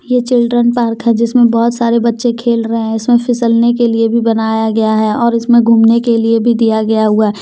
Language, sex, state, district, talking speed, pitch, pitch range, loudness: Hindi, female, Jharkhand, Deoghar, 235 wpm, 230 Hz, 225-235 Hz, -11 LUFS